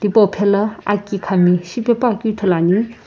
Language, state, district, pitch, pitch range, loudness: Sumi, Nagaland, Kohima, 205 Hz, 190-220 Hz, -17 LUFS